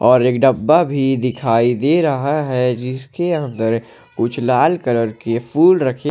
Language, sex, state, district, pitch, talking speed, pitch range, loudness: Hindi, male, Jharkhand, Ranchi, 130 Hz, 155 wpm, 120-145 Hz, -16 LUFS